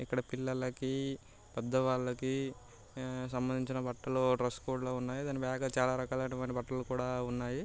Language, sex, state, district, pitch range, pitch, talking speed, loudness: Telugu, male, Andhra Pradesh, Guntur, 125-130 Hz, 130 Hz, 110 wpm, -36 LUFS